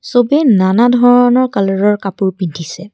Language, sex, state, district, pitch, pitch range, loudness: Assamese, female, Assam, Kamrup Metropolitan, 205 Hz, 190-245 Hz, -12 LUFS